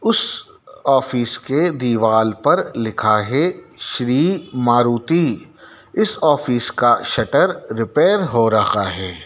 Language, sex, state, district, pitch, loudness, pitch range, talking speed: Hindi, male, Madhya Pradesh, Dhar, 120 Hz, -17 LUFS, 110-165 Hz, 110 wpm